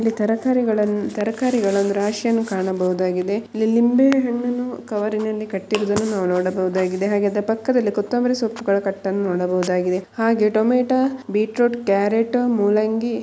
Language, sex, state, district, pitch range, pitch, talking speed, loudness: Kannada, male, Karnataka, Mysore, 200-235 Hz, 215 Hz, 120 wpm, -20 LUFS